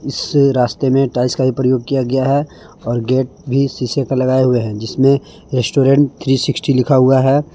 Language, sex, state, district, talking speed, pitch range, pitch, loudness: Hindi, male, Jharkhand, Palamu, 190 wpm, 130-140 Hz, 130 Hz, -15 LUFS